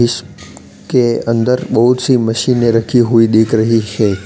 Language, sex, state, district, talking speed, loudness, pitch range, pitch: Hindi, male, Uttar Pradesh, Lalitpur, 155 wpm, -13 LUFS, 110-120 Hz, 115 Hz